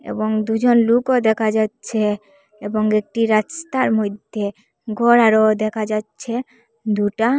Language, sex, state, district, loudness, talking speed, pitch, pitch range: Bengali, female, Assam, Hailakandi, -18 LUFS, 115 wpm, 220 Hz, 215-235 Hz